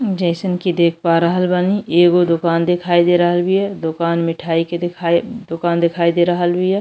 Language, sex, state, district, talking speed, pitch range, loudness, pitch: Bhojpuri, female, Uttar Pradesh, Deoria, 175 wpm, 170-180 Hz, -16 LUFS, 175 Hz